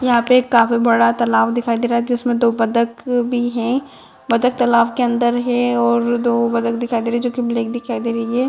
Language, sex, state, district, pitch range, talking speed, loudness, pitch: Hindi, female, Bihar, Madhepura, 235-245 Hz, 240 wpm, -17 LUFS, 235 Hz